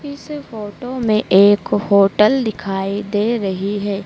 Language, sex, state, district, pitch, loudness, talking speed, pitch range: Hindi, female, Madhya Pradesh, Dhar, 205 Hz, -16 LUFS, 135 wpm, 200-235 Hz